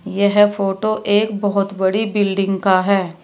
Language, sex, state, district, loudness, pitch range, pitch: Hindi, female, Uttar Pradesh, Shamli, -17 LUFS, 195-205 Hz, 200 Hz